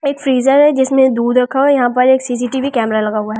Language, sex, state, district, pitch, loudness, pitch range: Hindi, female, Delhi, New Delhi, 260 Hz, -13 LUFS, 245-270 Hz